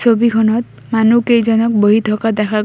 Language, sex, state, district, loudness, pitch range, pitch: Assamese, female, Assam, Kamrup Metropolitan, -13 LUFS, 215-230 Hz, 225 Hz